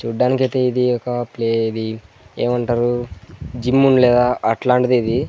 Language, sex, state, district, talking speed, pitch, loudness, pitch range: Telugu, male, Andhra Pradesh, Sri Satya Sai, 125 wpm, 120 Hz, -18 LUFS, 115-125 Hz